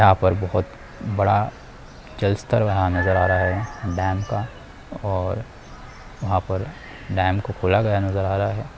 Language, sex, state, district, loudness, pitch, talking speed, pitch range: Hindi, male, Bihar, Muzaffarpur, -22 LUFS, 95 Hz, 165 wpm, 95-105 Hz